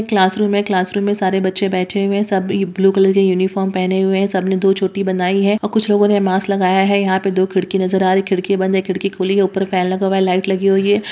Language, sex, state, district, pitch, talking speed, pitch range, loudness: Hindi, female, Bihar, Purnia, 195 Hz, 290 wpm, 190-200 Hz, -16 LUFS